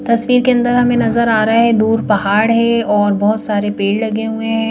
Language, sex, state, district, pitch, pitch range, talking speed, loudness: Hindi, female, Madhya Pradesh, Bhopal, 225 Hz, 210-235 Hz, 230 wpm, -14 LUFS